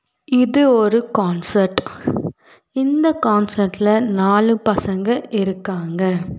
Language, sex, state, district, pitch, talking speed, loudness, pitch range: Tamil, female, Tamil Nadu, Nilgiris, 210 Hz, 75 wpm, -18 LUFS, 195-240 Hz